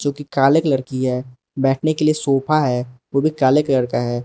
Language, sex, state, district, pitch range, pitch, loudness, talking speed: Hindi, male, Arunachal Pradesh, Lower Dibang Valley, 130-150 Hz, 135 Hz, -18 LUFS, 210 wpm